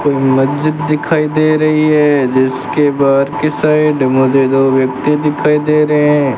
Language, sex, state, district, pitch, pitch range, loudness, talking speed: Hindi, male, Rajasthan, Bikaner, 145 Hz, 135-150 Hz, -12 LUFS, 160 wpm